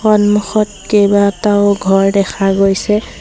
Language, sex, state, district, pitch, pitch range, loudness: Assamese, female, Assam, Sonitpur, 200 Hz, 195-210 Hz, -12 LUFS